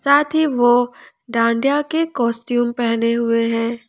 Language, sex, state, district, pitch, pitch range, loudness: Hindi, female, Jharkhand, Palamu, 240 Hz, 230-280 Hz, -18 LUFS